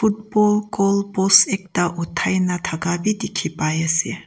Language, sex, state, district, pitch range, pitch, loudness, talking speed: Nagamese, female, Nagaland, Kohima, 175-210 Hz, 195 Hz, -19 LUFS, 155 wpm